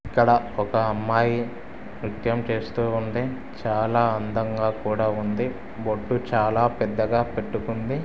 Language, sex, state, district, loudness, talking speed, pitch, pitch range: Telugu, male, Andhra Pradesh, Srikakulam, -24 LUFS, 105 wpm, 115 Hz, 110-120 Hz